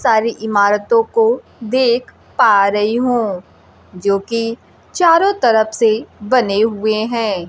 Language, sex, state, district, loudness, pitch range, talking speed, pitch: Hindi, female, Bihar, Kaimur, -15 LUFS, 210-245 Hz, 120 wpm, 225 Hz